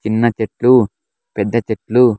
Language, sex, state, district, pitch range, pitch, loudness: Telugu, male, Andhra Pradesh, Sri Satya Sai, 110-120 Hz, 115 Hz, -16 LUFS